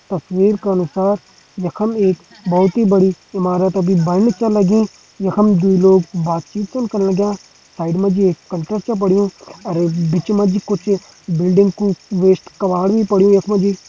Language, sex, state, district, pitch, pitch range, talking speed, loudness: Kumaoni, male, Uttarakhand, Tehri Garhwal, 195 Hz, 185-205 Hz, 185 wpm, -16 LUFS